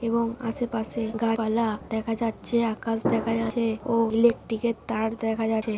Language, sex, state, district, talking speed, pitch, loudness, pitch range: Bengali, female, West Bengal, Jhargram, 165 wpm, 225 Hz, -26 LUFS, 225-230 Hz